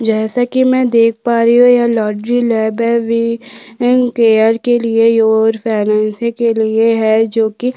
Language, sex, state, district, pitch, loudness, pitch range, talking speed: Hindi, female, Chhattisgarh, Korba, 230 Hz, -13 LUFS, 220-240 Hz, 175 wpm